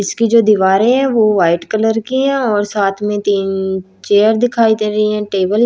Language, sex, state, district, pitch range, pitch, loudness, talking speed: Hindi, female, Chhattisgarh, Raipur, 195-225 Hz, 210 Hz, -14 LUFS, 210 wpm